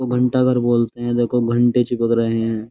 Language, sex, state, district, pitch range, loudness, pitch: Hindi, male, Uttar Pradesh, Jyotiba Phule Nagar, 115-125 Hz, -18 LUFS, 120 Hz